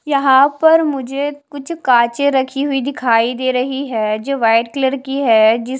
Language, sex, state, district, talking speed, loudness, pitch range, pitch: Hindi, female, Haryana, Charkhi Dadri, 175 wpm, -15 LUFS, 240-280 Hz, 265 Hz